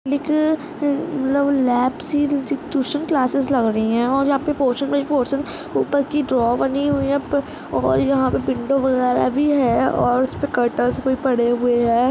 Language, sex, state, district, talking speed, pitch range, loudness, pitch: Hindi, female, Rajasthan, Nagaur, 180 wpm, 250-285 Hz, -19 LUFS, 275 Hz